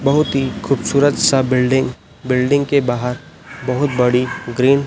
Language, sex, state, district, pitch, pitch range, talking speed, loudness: Hindi, male, Chhattisgarh, Raipur, 130 Hz, 125-140 Hz, 150 wpm, -17 LUFS